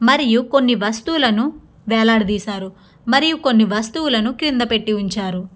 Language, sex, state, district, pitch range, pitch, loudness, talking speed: Telugu, female, Andhra Pradesh, Guntur, 210-265 Hz, 225 Hz, -17 LUFS, 110 wpm